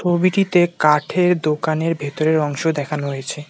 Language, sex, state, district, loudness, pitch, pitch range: Bengali, male, West Bengal, Alipurduar, -18 LUFS, 155 Hz, 150-175 Hz